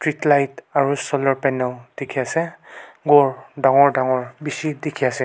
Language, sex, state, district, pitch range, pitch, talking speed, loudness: Nagamese, male, Nagaland, Kohima, 130-150 Hz, 140 Hz, 125 wpm, -20 LUFS